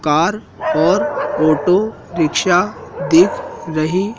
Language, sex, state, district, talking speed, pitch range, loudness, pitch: Hindi, male, Madhya Pradesh, Dhar, 85 wpm, 155-210 Hz, -16 LUFS, 180 Hz